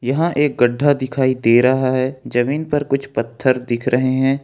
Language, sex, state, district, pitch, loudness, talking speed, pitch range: Hindi, male, Jharkhand, Ranchi, 130 Hz, -17 LUFS, 190 wpm, 125-140 Hz